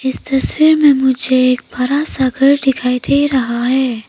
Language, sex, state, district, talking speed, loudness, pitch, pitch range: Hindi, female, Arunachal Pradesh, Papum Pare, 175 wpm, -13 LUFS, 265 Hz, 250-280 Hz